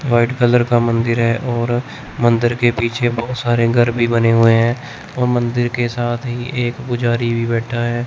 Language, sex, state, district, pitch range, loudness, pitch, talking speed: Hindi, male, Chandigarh, Chandigarh, 115-120 Hz, -17 LUFS, 120 Hz, 195 wpm